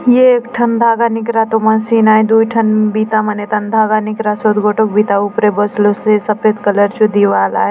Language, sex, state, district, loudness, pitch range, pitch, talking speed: Halbi, female, Chhattisgarh, Bastar, -12 LUFS, 210-225 Hz, 215 Hz, 180 wpm